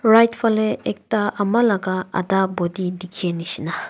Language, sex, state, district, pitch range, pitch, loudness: Nagamese, female, Nagaland, Dimapur, 185-220 Hz, 195 Hz, -21 LUFS